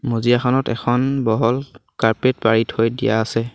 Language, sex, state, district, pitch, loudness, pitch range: Assamese, male, Assam, Sonitpur, 115 Hz, -18 LUFS, 115-125 Hz